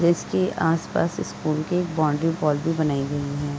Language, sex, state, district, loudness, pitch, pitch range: Hindi, female, Uttar Pradesh, Deoria, -24 LUFS, 160 Hz, 145-170 Hz